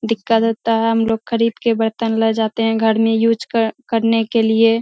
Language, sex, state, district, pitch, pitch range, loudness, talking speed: Hindi, female, Bihar, Purnia, 225 Hz, 225-230 Hz, -17 LUFS, 210 wpm